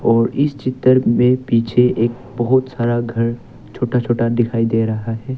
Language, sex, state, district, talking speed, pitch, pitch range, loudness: Hindi, male, Arunachal Pradesh, Longding, 165 wpm, 120 Hz, 115-130 Hz, -17 LUFS